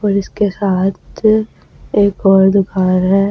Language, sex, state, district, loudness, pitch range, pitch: Hindi, female, Delhi, New Delhi, -14 LUFS, 190-205 Hz, 195 Hz